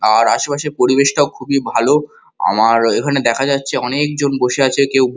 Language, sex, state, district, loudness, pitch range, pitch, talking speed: Bengali, male, West Bengal, Kolkata, -15 LUFS, 125-140 Hz, 135 Hz, 175 wpm